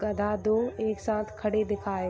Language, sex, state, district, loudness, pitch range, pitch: Hindi, female, Bihar, Saharsa, -29 LUFS, 205-215 Hz, 215 Hz